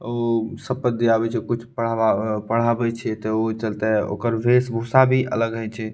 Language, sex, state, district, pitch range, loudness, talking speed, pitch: Maithili, male, Bihar, Purnia, 110-120 Hz, -21 LUFS, 200 wpm, 115 Hz